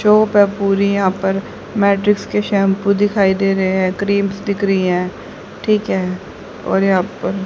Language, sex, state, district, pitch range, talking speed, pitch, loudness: Hindi, female, Haryana, Jhajjar, 190-205 Hz, 155 wpm, 195 Hz, -16 LUFS